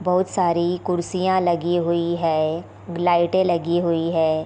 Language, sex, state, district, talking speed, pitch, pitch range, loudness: Hindi, female, Bihar, Sitamarhi, 135 wpm, 175 Hz, 170-180 Hz, -21 LUFS